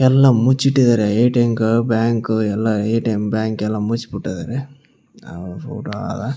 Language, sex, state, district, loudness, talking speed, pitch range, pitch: Kannada, male, Karnataka, Raichur, -18 LUFS, 105 wpm, 110-125 Hz, 115 Hz